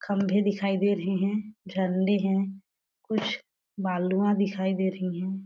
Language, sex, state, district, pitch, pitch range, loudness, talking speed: Hindi, female, Chhattisgarh, Sarguja, 195 Hz, 190-205 Hz, -27 LUFS, 155 wpm